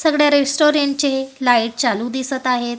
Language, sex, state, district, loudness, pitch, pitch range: Marathi, female, Maharashtra, Gondia, -17 LUFS, 265 Hz, 245-285 Hz